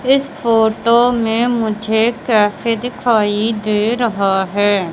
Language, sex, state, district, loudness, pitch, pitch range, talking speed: Hindi, male, Madhya Pradesh, Katni, -15 LUFS, 225 Hz, 210-240 Hz, 110 wpm